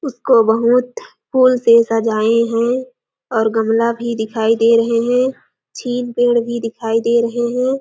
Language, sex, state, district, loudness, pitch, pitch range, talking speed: Hindi, female, Chhattisgarh, Sarguja, -15 LUFS, 235 Hz, 230-250 Hz, 155 wpm